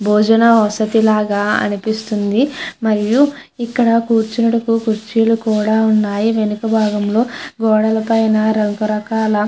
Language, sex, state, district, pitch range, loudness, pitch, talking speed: Telugu, female, Andhra Pradesh, Chittoor, 215-230 Hz, -15 LUFS, 220 Hz, 110 wpm